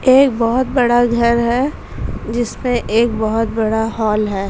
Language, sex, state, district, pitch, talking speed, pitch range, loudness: Hindi, female, Uttar Pradesh, Jalaun, 235 Hz, 160 wpm, 220-245 Hz, -16 LUFS